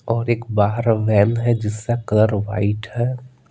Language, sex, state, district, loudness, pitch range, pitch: Hindi, male, Bihar, Patna, -19 LUFS, 105-120 Hz, 110 Hz